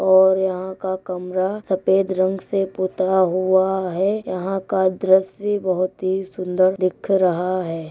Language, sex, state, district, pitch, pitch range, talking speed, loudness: Hindi, female, Uttar Pradesh, Jyotiba Phule Nagar, 190 Hz, 185-190 Hz, 145 wpm, -20 LUFS